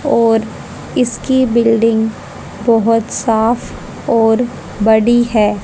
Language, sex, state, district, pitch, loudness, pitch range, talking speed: Hindi, female, Haryana, Jhajjar, 230 Hz, -14 LUFS, 220-235 Hz, 85 wpm